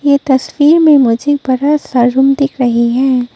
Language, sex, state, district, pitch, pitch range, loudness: Hindi, female, Arunachal Pradesh, Papum Pare, 270 Hz, 250-290 Hz, -11 LUFS